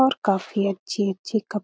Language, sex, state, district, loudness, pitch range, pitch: Hindi, female, Bihar, Lakhisarai, -24 LUFS, 195-215 Hz, 200 Hz